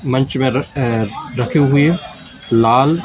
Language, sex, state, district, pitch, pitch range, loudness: Hindi, male, Madhya Pradesh, Katni, 130 Hz, 125-150 Hz, -16 LUFS